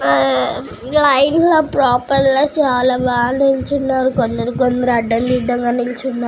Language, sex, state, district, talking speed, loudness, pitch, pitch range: Telugu, female, Telangana, Nalgonda, 125 wpm, -15 LUFS, 250 Hz, 240-275 Hz